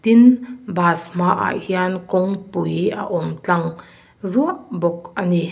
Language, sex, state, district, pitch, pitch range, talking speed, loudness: Mizo, female, Mizoram, Aizawl, 185 Hz, 175-210 Hz, 130 wpm, -19 LUFS